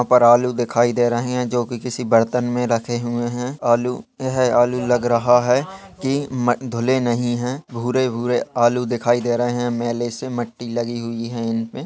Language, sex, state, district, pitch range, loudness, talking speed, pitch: Hindi, male, Uttar Pradesh, Gorakhpur, 120-125 Hz, -20 LUFS, 195 wpm, 120 Hz